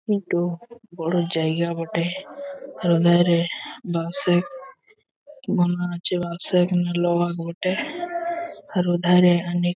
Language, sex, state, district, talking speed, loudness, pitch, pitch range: Bengali, male, West Bengal, Malda, 110 wpm, -22 LUFS, 175 Hz, 175-235 Hz